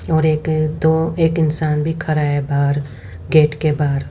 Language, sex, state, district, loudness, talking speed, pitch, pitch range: Hindi, female, Haryana, Rohtak, -17 LUFS, 175 wpm, 155 Hz, 145-160 Hz